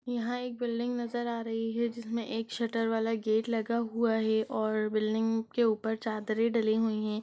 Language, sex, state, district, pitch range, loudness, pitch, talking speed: Hindi, female, Bihar, Jahanabad, 220-235 Hz, -31 LUFS, 225 Hz, 190 wpm